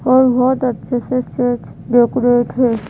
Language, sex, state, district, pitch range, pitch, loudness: Hindi, female, Madhya Pradesh, Bhopal, 240-255 Hz, 250 Hz, -16 LUFS